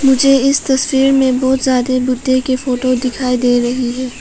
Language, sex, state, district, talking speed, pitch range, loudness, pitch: Hindi, female, Arunachal Pradesh, Papum Pare, 185 wpm, 255-265 Hz, -14 LUFS, 255 Hz